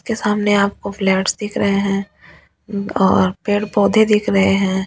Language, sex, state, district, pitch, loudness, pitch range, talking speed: Hindi, female, Delhi, New Delhi, 200 Hz, -17 LUFS, 195-210 Hz, 150 wpm